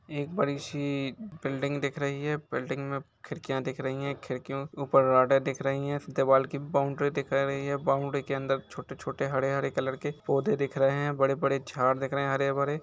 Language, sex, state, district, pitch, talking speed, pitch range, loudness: Hindi, male, Bihar, Gopalganj, 140 Hz, 205 wpm, 135-140 Hz, -29 LUFS